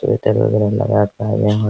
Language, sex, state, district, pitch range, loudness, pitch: Hindi, male, Bihar, Araria, 105-110 Hz, -16 LUFS, 105 Hz